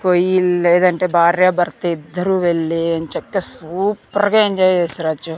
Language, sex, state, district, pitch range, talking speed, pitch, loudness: Telugu, female, Andhra Pradesh, Sri Satya Sai, 165-185 Hz, 120 wpm, 175 Hz, -16 LUFS